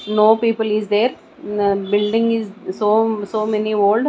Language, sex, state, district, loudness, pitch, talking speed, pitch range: English, female, Odisha, Nuapada, -18 LUFS, 215 Hz, 145 wpm, 205-220 Hz